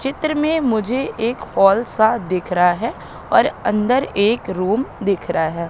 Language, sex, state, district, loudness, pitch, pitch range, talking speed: Hindi, female, Madhya Pradesh, Katni, -18 LUFS, 220 Hz, 185-250 Hz, 170 wpm